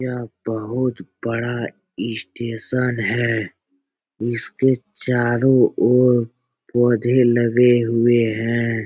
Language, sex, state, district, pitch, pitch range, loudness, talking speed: Hindi, male, Bihar, Jahanabad, 120 Hz, 115-125 Hz, -19 LUFS, 90 wpm